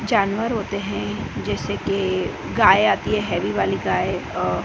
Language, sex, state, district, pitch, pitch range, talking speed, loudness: Hindi, female, Gujarat, Gandhinagar, 195 Hz, 185-220 Hz, 155 wpm, -21 LUFS